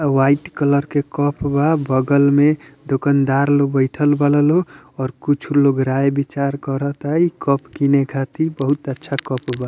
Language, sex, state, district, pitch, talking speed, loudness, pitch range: Bhojpuri, male, Bihar, Muzaffarpur, 140 Hz, 160 wpm, -18 LUFS, 135-145 Hz